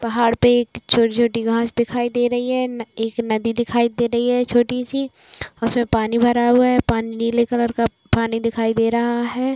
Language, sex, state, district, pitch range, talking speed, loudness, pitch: Hindi, female, Uttar Pradesh, Varanasi, 230-245 Hz, 180 wpm, -19 LUFS, 235 Hz